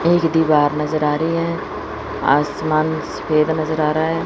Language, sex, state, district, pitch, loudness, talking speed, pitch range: Hindi, female, Chandigarh, Chandigarh, 155 Hz, -18 LUFS, 170 wpm, 150-160 Hz